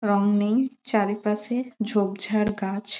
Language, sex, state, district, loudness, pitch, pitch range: Bengali, female, West Bengal, Malda, -25 LUFS, 210 Hz, 205-220 Hz